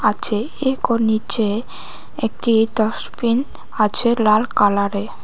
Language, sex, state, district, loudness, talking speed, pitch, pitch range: Bengali, female, Tripura, West Tripura, -18 LUFS, 90 wpm, 220 Hz, 215-235 Hz